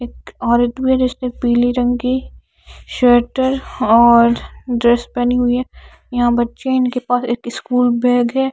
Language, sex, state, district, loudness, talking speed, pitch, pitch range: Hindi, female, Bihar, Katihar, -16 LUFS, 150 wpm, 245 Hz, 240-255 Hz